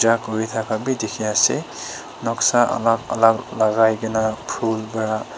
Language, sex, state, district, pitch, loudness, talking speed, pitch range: Nagamese, female, Nagaland, Dimapur, 110 Hz, -20 LUFS, 145 wpm, 110-115 Hz